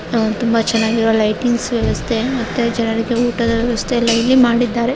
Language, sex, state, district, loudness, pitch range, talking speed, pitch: Kannada, female, Karnataka, Raichur, -16 LUFS, 225-240 Hz, 120 wpm, 235 Hz